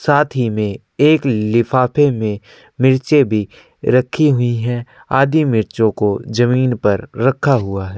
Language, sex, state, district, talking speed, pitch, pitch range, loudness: Hindi, male, Chhattisgarh, Korba, 145 wpm, 120 Hz, 110-135 Hz, -16 LUFS